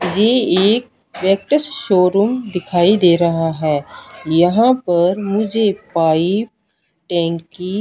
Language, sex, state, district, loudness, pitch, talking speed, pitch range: Hindi, female, Punjab, Pathankot, -16 LUFS, 185 Hz, 100 wpm, 170-215 Hz